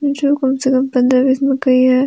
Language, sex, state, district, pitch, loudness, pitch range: Hindi, female, Jharkhand, Deoghar, 265 Hz, -14 LUFS, 255-275 Hz